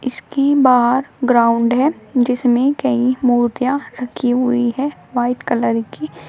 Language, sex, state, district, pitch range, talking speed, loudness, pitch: Hindi, female, Uttar Pradesh, Shamli, 240-265 Hz, 125 wpm, -16 LUFS, 250 Hz